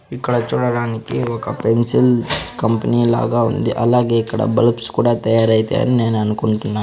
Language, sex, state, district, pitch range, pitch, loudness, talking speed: Telugu, male, Andhra Pradesh, Sri Satya Sai, 110-120 Hz, 115 Hz, -17 LUFS, 130 wpm